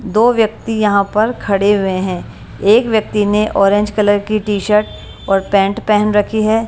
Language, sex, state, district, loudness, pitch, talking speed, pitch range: Hindi, female, Himachal Pradesh, Shimla, -14 LUFS, 210 Hz, 180 wpm, 200-215 Hz